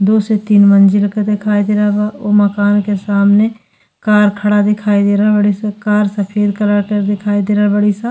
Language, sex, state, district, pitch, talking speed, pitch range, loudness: Bhojpuri, female, Uttar Pradesh, Ghazipur, 205 Hz, 200 wpm, 205-210 Hz, -13 LUFS